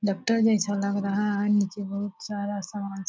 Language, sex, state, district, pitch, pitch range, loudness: Hindi, female, Bihar, Purnia, 205 Hz, 200-210 Hz, -27 LUFS